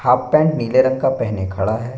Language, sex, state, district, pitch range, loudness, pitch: Hindi, male, Bihar, Bhagalpur, 110-130 Hz, -17 LUFS, 125 Hz